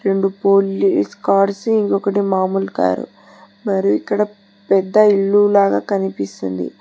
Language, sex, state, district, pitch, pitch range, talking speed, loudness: Telugu, female, Telangana, Hyderabad, 195 Hz, 190-200 Hz, 105 wpm, -17 LUFS